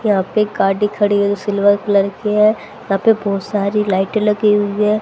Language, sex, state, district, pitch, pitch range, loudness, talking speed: Hindi, female, Haryana, Jhajjar, 205 Hz, 200-210 Hz, -16 LUFS, 215 wpm